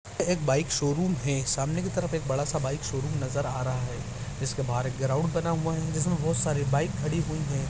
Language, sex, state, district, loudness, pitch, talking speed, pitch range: Hindi, male, Bihar, Araria, -28 LUFS, 140 Hz, 225 wpm, 135-160 Hz